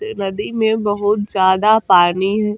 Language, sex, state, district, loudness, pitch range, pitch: Bajjika, female, Bihar, Vaishali, -15 LUFS, 195-215 Hz, 205 Hz